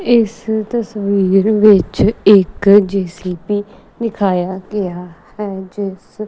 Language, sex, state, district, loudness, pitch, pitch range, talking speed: Punjabi, female, Punjab, Kapurthala, -15 LUFS, 200 Hz, 190-215 Hz, 95 wpm